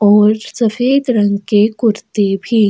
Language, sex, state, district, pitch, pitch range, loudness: Hindi, female, Chhattisgarh, Sukma, 215 Hz, 205-230 Hz, -14 LUFS